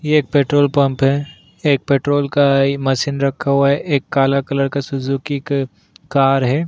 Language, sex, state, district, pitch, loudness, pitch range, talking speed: Hindi, male, Uttarakhand, Tehri Garhwal, 140 Hz, -17 LUFS, 135-145 Hz, 190 wpm